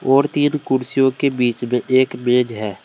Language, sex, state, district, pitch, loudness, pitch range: Hindi, male, Uttar Pradesh, Saharanpur, 130 Hz, -18 LUFS, 120-135 Hz